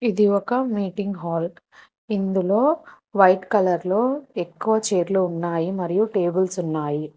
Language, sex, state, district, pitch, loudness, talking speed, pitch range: Telugu, female, Telangana, Hyderabad, 190 Hz, -22 LUFS, 115 wpm, 175-215 Hz